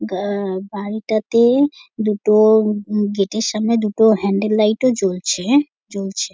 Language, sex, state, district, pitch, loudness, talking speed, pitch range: Bengali, female, West Bengal, North 24 Parganas, 215 Hz, -17 LUFS, 105 wpm, 200-220 Hz